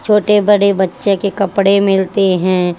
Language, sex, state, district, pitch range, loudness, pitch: Hindi, female, Haryana, Charkhi Dadri, 190-205 Hz, -13 LUFS, 200 Hz